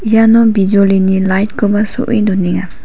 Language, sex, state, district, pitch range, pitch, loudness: Garo, female, Meghalaya, West Garo Hills, 190-220 Hz, 205 Hz, -11 LUFS